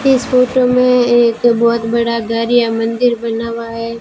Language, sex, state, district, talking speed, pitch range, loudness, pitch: Hindi, female, Rajasthan, Bikaner, 180 wpm, 230-245 Hz, -14 LUFS, 235 Hz